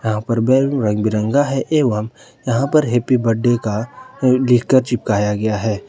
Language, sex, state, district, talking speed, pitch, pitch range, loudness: Hindi, male, Jharkhand, Ranchi, 165 wpm, 120 Hz, 110-130 Hz, -17 LUFS